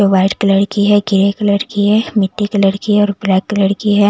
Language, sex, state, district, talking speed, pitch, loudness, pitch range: Hindi, female, Delhi, New Delhi, 250 wpm, 205 Hz, -13 LUFS, 195-205 Hz